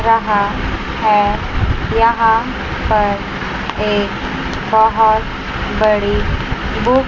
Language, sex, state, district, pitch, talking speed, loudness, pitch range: Hindi, male, Chandigarh, Chandigarh, 215 Hz, 75 wpm, -16 LUFS, 205-225 Hz